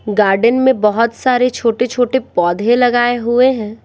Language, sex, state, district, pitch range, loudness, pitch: Hindi, female, Bihar, Patna, 215-250 Hz, -14 LUFS, 240 Hz